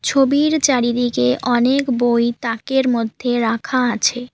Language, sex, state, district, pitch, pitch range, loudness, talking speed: Bengali, female, West Bengal, Alipurduar, 245 Hz, 235-260 Hz, -17 LUFS, 110 wpm